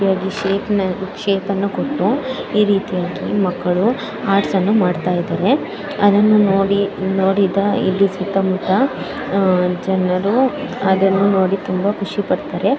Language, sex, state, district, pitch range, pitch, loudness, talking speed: Kannada, female, Karnataka, Bellary, 190-205 Hz, 195 Hz, -17 LUFS, 105 wpm